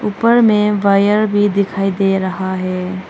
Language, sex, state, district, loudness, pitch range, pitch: Hindi, female, Arunachal Pradesh, Longding, -15 LUFS, 190-210 Hz, 200 Hz